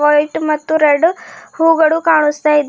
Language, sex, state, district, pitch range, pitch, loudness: Kannada, female, Karnataka, Bidar, 295-325 Hz, 310 Hz, -13 LUFS